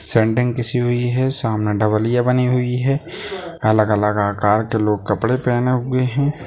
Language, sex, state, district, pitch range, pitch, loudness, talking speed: Hindi, male, Bihar, Sitamarhi, 110-125 Hz, 120 Hz, -18 LUFS, 165 wpm